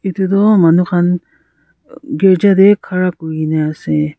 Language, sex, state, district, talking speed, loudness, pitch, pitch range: Nagamese, female, Nagaland, Kohima, 145 wpm, -13 LUFS, 180 Hz, 160-195 Hz